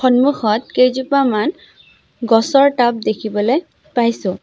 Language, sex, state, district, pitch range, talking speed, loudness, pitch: Assamese, female, Assam, Sonitpur, 225-275 Hz, 80 wpm, -16 LUFS, 245 Hz